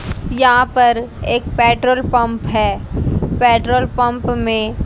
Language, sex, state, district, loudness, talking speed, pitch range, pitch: Hindi, female, Haryana, Jhajjar, -15 LUFS, 110 wpm, 230-250 Hz, 240 Hz